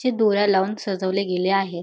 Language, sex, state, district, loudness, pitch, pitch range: Marathi, female, Maharashtra, Dhule, -21 LUFS, 195 Hz, 190-205 Hz